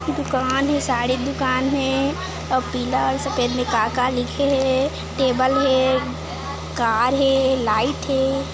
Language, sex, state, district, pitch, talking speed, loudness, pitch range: Hindi, female, Chhattisgarh, Kabirdham, 265 Hz, 140 wpm, -20 LUFS, 255-275 Hz